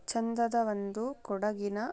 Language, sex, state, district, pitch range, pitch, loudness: Kannada, female, Karnataka, Shimoga, 205-235 Hz, 225 Hz, -33 LUFS